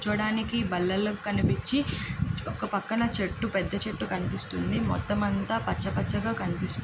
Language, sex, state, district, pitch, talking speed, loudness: Telugu, male, Andhra Pradesh, Srikakulam, 200 Hz, 125 wpm, -28 LUFS